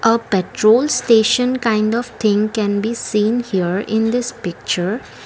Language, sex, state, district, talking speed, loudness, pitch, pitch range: English, female, Assam, Kamrup Metropolitan, 150 wpm, -17 LUFS, 220 Hz, 205-240 Hz